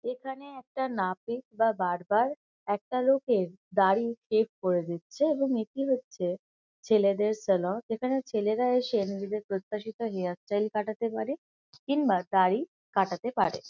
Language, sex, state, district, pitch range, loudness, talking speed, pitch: Bengali, female, West Bengal, Kolkata, 195-250 Hz, -29 LUFS, 125 wpm, 215 Hz